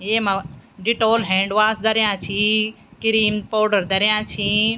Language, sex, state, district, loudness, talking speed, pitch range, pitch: Garhwali, female, Uttarakhand, Tehri Garhwal, -19 LUFS, 125 wpm, 195-220 Hz, 215 Hz